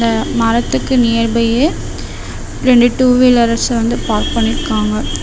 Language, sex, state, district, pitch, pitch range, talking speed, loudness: Tamil, female, Tamil Nadu, Namakkal, 235 Hz, 230-250 Hz, 90 wpm, -13 LUFS